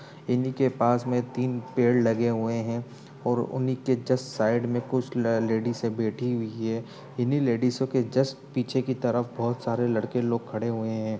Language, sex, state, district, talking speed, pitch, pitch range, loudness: Hindi, male, Uttar Pradesh, Etah, 195 wpm, 120 Hz, 115-130 Hz, -27 LUFS